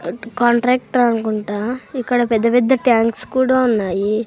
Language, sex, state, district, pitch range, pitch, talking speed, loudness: Telugu, female, Andhra Pradesh, Sri Satya Sai, 220-250 Hz, 240 Hz, 110 wpm, -17 LUFS